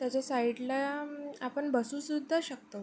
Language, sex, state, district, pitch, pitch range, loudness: Marathi, female, Maharashtra, Sindhudurg, 270 Hz, 250-290 Hz, -34 LUFS